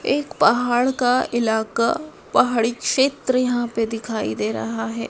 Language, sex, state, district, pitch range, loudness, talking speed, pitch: Hindi, female, Madhya Pradesh, Dhar, 220-250 Hz, -21 LUFS, 140 wpm, 235 Hz